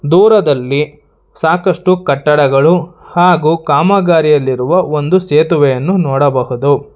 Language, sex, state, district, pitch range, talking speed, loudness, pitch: Kannada, male, Karnataka, Bangalore, 140-180 Hz, 70 wpm, -11 LUFS, 155 Hz